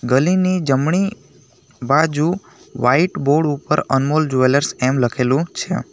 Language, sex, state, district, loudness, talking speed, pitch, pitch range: Gujarati, male, Gujarat, Navsari, -17 LUFS, 110 wpm, 140 Hz, 130-165 Hz